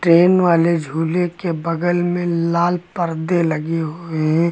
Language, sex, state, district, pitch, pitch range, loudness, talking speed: Hindi, male, Uttar Pradesh, Lucknow, 170 Hz, 165-175 Hz, -18 LUFS, 145 wpm